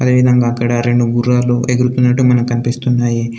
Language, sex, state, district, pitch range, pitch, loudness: Telugu, male, Telangana, Komaram Bheem, 120-125 Hz, 120 Hz, -14 LUFS